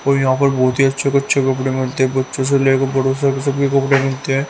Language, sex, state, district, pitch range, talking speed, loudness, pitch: Hindi, male, Haryana, Rohtak, 130-140 Hz, 295 wpm, -16 LUFS, 135 Hz